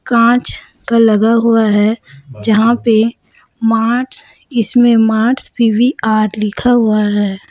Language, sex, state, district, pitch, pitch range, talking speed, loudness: Hindi, female, Chhattisgarh, Raipur, 225 Hz, 215-235 Hz, 110 wpm, -13 LUFS